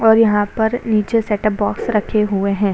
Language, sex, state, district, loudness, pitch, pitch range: Hindi, female, Maharashtra, Chandrapur, -17 LUFS, 215 Hz, 205-220 Hz